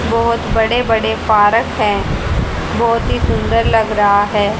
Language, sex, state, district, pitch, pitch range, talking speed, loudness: Hindi, female, Haryana, Rohtak, 220 Hz, 205-230 Hz, 145 wpm, -14 LUFS